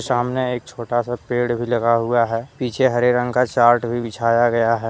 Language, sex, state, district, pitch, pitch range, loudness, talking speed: Hindi, male, Jharkhand, Deoghar, 120 Hz, 115-125 Hz, -19 LUFS, 220 wpm